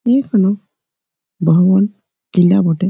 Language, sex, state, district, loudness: Bengali, male, West Bengal, Malda, -14 LUFS